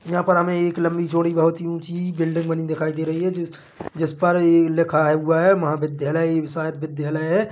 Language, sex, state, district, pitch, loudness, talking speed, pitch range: Hindi, male, Chhattisgarh, Bilaspur, 165 Hz, -21 LUFS, 210 wpm, 155-170 Hz